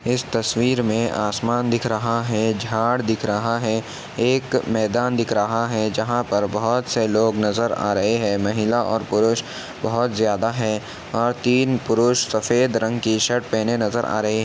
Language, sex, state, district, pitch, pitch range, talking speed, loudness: Hindi, male, Uttar Pradesh, Etah, 115 Hz, 110-120 Hz, 180 wpm, -21 LUFS